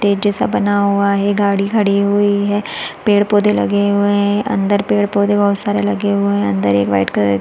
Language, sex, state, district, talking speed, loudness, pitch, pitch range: Hindi, female, Chhattisgarh, Balrampur, 220 wpm, -15 LUFS, 200 Hz, 195-205 Hz